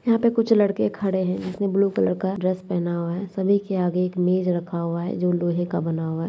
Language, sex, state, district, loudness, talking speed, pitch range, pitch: Hindi, female, Uttarakhand, Tehri Garhwal, -23 LUFS, 265 wpm, 175-200 Hz, 185 Hz